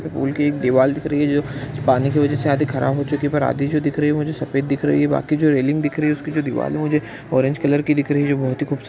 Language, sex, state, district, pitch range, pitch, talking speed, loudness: Hindi, male, Chhattisgarh, Bilaspur, 135-150 Hz, 145 Hz, 315 wpm, -19 LUFS